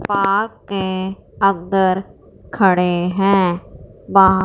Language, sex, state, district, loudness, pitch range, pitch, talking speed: Hindi, female, Punjab, Fazilka, -17 LUFS, 185-195 Hz, 190 Hz, 65 wpm